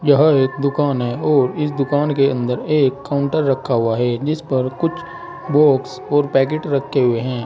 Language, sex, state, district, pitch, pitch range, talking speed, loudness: Hindi, male, Uttar Pradesh, Saharanpur, 140 Hz, 130-150 Hz, 185 wpm, -18 LUFS